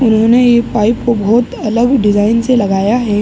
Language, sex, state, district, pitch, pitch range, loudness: Hindi, male, Uttar Pradesh, Ghazipur, 230 Hz, 215-240 Hz, -11 LUFS